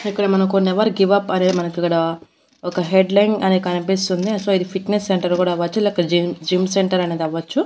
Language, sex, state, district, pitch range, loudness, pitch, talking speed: Telugu, female, Andhra Pradesh, Annamaya, 175-195 Hz, -18 LUFS, 185 Hz, 180 wpm